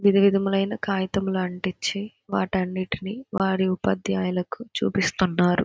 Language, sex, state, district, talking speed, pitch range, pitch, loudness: Telugu, female, Andhra Pradesh, Krishna, 85 wpm, 185-200 Hz, 190 Hz, -25 LUFS